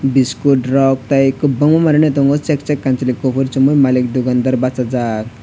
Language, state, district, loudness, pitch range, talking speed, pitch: Kokborok, Tripura, West Tripura, -14 LUFS, 125-140 Hz, 155 wpm, 135 Hz